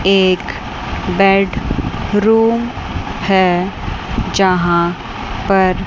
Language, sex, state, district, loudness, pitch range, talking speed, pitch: Hindi, female, Chandigarh, Chandigarh, -15 LUFS, 185-195 Hz, 60 wpm, 190 Hz